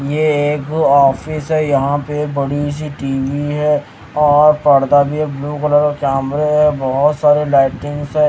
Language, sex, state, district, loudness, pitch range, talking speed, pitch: Hindi, male, Haryana, Rohtak, -15 LUFS, 140-150 Hz, 150 wpm, 145 Hz